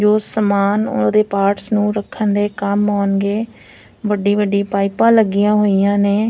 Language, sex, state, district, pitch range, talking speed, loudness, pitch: Punjabi, female, Punjab, Fazilka, 200-210 Hz, 160 wpm, -16 LUFS, 205 Hz